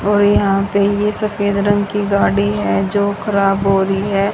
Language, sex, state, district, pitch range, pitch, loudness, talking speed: Hindi, female, Haryana, Charkhi Dadri, 195-205 Hz, 200 Hz, -16 LUFS, 195 wpm